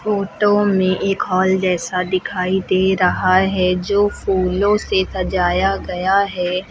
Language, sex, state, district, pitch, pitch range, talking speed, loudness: Hindi, female, Uttar Pradesh, Lucknow, 190 Hz, 185-195 Hz, 135 wpm, -17 LUFS